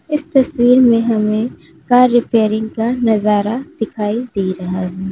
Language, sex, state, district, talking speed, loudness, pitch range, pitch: Hindi, female, Uttar Pradesh, Lalitpur, 140 wpm, -15 LUFS, 210-245 Hz, 225 Hz